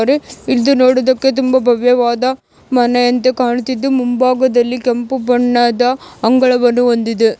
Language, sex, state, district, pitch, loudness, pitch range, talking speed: Kannada, female, Karnataka, Mysore, 250 Hz, -13 LUFS, 245-260 Hz, 95 wpm